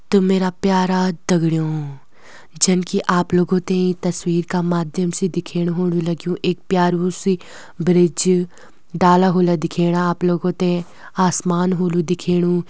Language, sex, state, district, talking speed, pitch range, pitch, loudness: Garhwali, female, Uttarakhand, Uttarkashi, 140 wpm, 175-185 Hz, 180 Hz, -18 LUFS